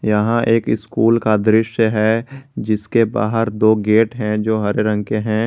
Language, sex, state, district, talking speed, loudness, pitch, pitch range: Hindi, male, Jharkhand, Garhwa, 175 wpm, -17 LUFS, 110 Hz, 105-115 Hz